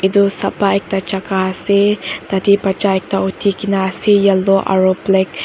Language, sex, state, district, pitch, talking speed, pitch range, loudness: Nagamese, female, Nagaland, Dimapur, 195 Hz, 175 wpm, 190-200 Hz, -15 LUFS